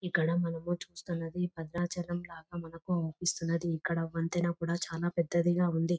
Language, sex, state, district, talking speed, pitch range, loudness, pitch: Telugu, female, Telangana, Nalgonda, 140 wpm, 165-175 Hz, -33 LUFS, 170 Hz